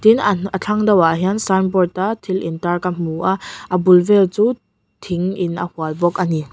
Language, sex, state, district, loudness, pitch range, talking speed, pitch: Mizo, female, Mizoram, Aizawl, -17 LUFS, 175-200 Hz, 210 wpm, 185 Hz